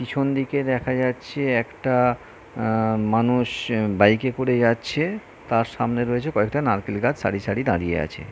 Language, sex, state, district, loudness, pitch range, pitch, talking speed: Bengali, male, West Bengal, North 24 Parganas, -22 LUFS, 110-130 Hz, 120 Hz, 150 wpm